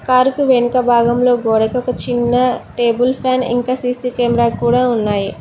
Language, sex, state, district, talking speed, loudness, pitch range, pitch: Telugu, female, Telangana, Mahabubabad, 155 wpm, -15 LUFS, 235-250 Hz, 245 Hz